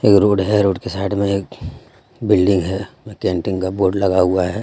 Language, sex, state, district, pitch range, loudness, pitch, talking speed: Hindi, male, Jharkhand, Deoghar, 95-100 Hz, -18 LUFS, 95 Hz, 205 wpm